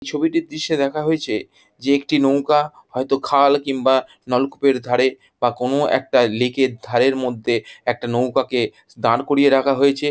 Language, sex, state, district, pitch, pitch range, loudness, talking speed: Bengali, female, West Bengal, Jhargram, 135 Hz, 125-140 Hz, -19 LUFS, 150 wpm